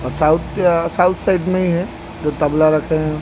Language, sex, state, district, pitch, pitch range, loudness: Hindi, male, Odisha, Khordha, 160 Hz, 155-180 Hz, -17 LUFS